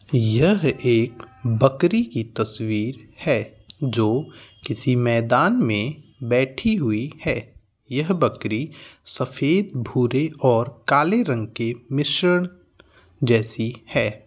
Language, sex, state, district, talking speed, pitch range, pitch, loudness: Bhojpuri, male, Uttar Pradesh, Gorakhpur, 115 wpm, 115-145 Hz, 125 Hz, -22 LUFS